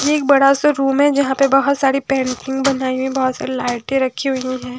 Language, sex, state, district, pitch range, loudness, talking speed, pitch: Hindi, female, Haryana, Jhajjar, 260-275 Hz, -17 LUFS, 250 wpm, 270 Hz